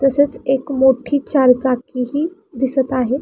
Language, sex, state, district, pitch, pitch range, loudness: Marathi, female, Maharashtra, Pune, 265 Hz, 255-280 Hz, -17 LUFS